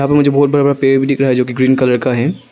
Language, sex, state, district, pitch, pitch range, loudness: Hindi, male, Arunachal Pradesh, Longding, 135 Hz, 130-140 Hz, -13 LUFS